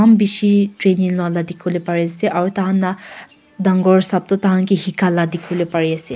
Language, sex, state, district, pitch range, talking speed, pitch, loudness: Nagamese, female, Nagaland, Kohima, 175-195 Hz, 175 wpm, 185 Hz, -17 LUFS